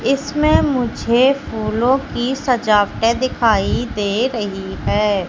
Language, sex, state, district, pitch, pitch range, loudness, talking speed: Hindi, female, Madhya Pradesh, Katni, 235 Hz, 210-260 Hz, -17 LUFS, 100 wpm